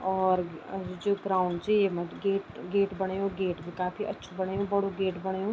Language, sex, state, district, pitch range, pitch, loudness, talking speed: Garhwali, female, Uttarakhand, Tehri Garhwal, 185-200 Hz, 190 Hz, -30 LUFS, 195 wpm